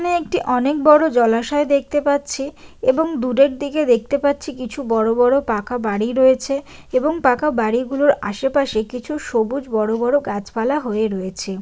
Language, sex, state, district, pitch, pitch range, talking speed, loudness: Bengali, female, West Bengal, Jalpaiguri, 260 Hz, 230-285 Hz, 150 wpm, -18 LUFS